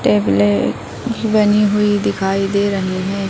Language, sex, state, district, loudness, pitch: Hindi, female, Uttar Pradesh, Deoria, -16 LUFS, 195 Hz